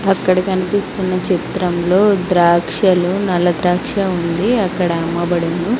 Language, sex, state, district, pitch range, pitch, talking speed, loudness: Telugu, female, Andhra Pradesh, Sri Satya Sai, 175-190 Hz, 185 Hz, 95 wpm, -16 LUFS